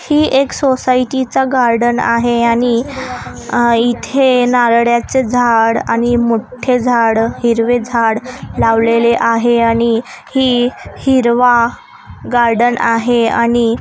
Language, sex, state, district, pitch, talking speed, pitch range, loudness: Marathi, female, Maharashtra, Aurangabad, 240 Hz, 110 wpm, 235-250 Hz, -13 LUFS